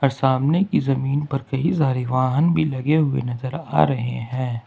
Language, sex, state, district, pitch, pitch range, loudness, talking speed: Hindi, male, Jharkhand, Ranchi, 135 Hz, 130-150 Hz, -21 LUFS, 180 wpm